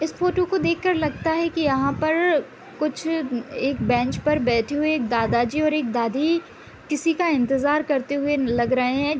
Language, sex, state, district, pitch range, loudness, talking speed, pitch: Hindi, female, Uttar Pradesh, Deoria, 255-320 Hz, -22 LUFS, 190 wpm, 295 Hz